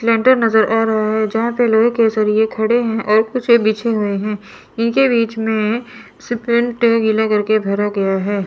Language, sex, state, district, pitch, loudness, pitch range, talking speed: Hindi, female, Chandigarh, Chandigarh, 225 Hz, -16 LUFS, 215-235 Hz, 200 wpm